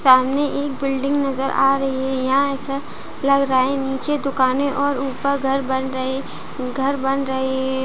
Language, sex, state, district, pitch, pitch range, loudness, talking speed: Hindi, female, Jharkhand, Jamtara, 270 Hz, 265-275 Hz, -20 LUFS, 170 wpm